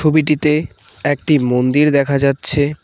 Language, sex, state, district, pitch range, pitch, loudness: Bengali, male, West Bengal, Cooch Behar, 140-150 Hz, 145 Hz, -15 LUFS